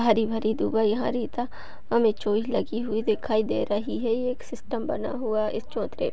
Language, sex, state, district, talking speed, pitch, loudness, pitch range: Hindi, female, Uttar Pradesh, Etah, 205 wpm, 225 Hz, -27 LUFS, 220-240 Hz